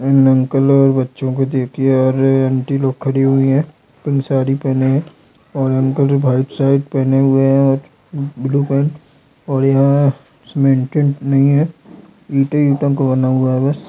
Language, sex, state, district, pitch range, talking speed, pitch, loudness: Hindi, male, Maharashtra, Dhule, 135-140 Hz, 175 wpm, 135 Hz, -15 LUFS